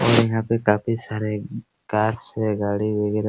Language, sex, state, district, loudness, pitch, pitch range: Hindi, male, Bihar, Araria, -23 LUFS, 110 Hz, 105-115 Hz